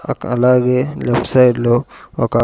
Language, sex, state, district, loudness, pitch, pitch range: Telugu, male, Andhra Pradesh, Sri Satya Sai, -15 LUFS, 125 Hz, 120-125 Hz